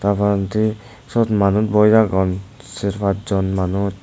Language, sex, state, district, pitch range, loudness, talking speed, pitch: Chakma, male, Tripura, West Tripura, 95-110 Hz, -18 LUFS, 150 wpm, 100 Hz